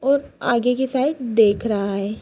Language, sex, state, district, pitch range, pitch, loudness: Hindi, female, Bihar, Purnia, 210-265 Hz, 240 Hz, -20 LUFS